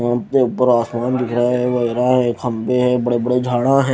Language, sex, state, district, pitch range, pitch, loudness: Hindi, female, Punjab, Fazilka, 120-125 Hz, 125 Hz, -17 LUFS